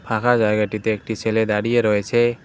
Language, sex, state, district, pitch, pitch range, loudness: Bengali, male, West Bengal, Cooch Behar, 110 Hz, 105-120 Hz, -19 LUFS